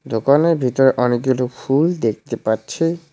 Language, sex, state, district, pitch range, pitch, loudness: Bengali, male, West Bengal, Cooch Behar, 115-155 Hz, 130 Hz, -18 LUFS